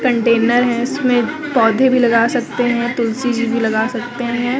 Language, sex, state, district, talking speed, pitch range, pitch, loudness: Hindi, female, Uttar Pradesh, Lucknow, 180 wpm, 235-250 Hz, 240 Hz, -16 LUFS